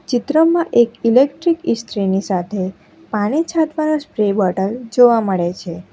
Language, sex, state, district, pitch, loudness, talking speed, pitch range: Gujarati, female, Gujarat, Valsad, 230 Hz, -17 LUFS, 120 wpm, 195-305 Hz